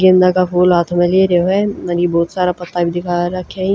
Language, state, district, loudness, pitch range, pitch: Haryanvi, Haryana, Rohtak, -15 LUFS, 175-185 Hz, 180 Hz